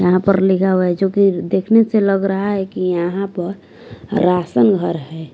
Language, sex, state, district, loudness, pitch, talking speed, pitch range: Hindi, female, Bihar, West Champaran, -16 LUFS, 190 Hz, 200 wpm, 175-195 Hz